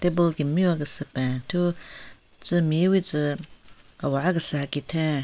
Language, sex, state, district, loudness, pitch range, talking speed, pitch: Rengma, female, Nagaland, Kohima, -20 LUFS, 145-175 Hz, 115 wpm, 155 Hz